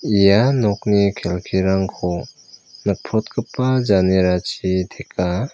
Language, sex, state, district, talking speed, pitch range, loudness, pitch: Garo, male, Meghalaya, West Garo Hills, 65 wpm, 95-105 Hz, -19 LUFS, 100 Hz